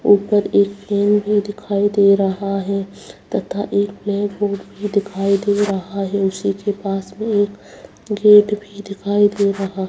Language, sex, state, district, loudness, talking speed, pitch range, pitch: Hindi, female, Bihar, Saharsa, -18 LUFS, 165 wpm, 195-205 Hz, 200 Hz